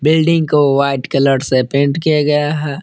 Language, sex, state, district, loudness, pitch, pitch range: Hindi, male, Jharkhand, Palamu, -14 LUFS, 145 Hz, 140-155 Hz